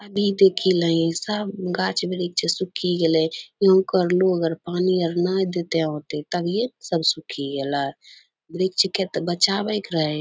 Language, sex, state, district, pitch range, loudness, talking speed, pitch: Angika, female, Bihar, Bhagalpur, 165-190 Hz, -22 LUFS, 165 wpm, 180 Hz